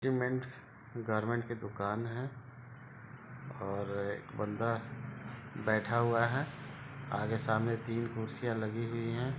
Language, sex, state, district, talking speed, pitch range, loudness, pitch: Hindi, male, Jharkhand, Sahebganj, 100 wpm, 110-130 Hz, -36 LUFS, 115 Hz